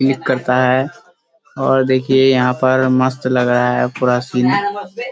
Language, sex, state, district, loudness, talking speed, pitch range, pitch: Hindi, male, Bihar, Kishanganj, -15 LUFS, 165 wpm, 125-135 Hz, 130 Hz